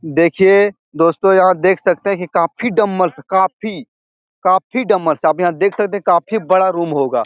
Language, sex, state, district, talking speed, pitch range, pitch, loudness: Hindi, male, Bihar, Jahanabad, 165 wpm, 170-200 Hz, 185 Hz, -15 LUFS